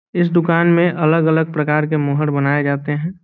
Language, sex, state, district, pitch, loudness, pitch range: Hindi, male, Bihar, Saran, 155 Hz, -16 LUFS, 145-170 Hz